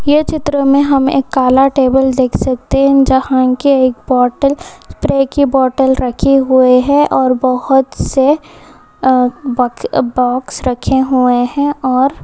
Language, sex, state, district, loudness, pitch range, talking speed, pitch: Hindi, female, West Bengal, Dakshin Dinajpur, -12 LUFS, 255-275 Hz, 135 wpm, 265 Hz